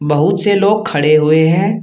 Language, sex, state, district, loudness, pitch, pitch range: Hindi, male, Uttar Pradesh, Shamli, -12 LUFS, 170 Hz, 150-200 Hz